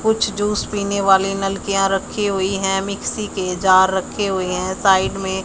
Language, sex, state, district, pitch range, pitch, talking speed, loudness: Hindi, male, Haryana, Charkhi Dadri, 190-200 Hz, 195 Hz, 185 wpm, -18 LUFS